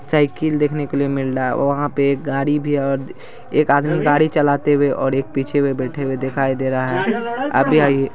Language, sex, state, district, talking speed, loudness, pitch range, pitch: Hindi, male, Bihar, Saharsa, 215 wpm, -18 LUFS, 135-150 Hz, 140 Hz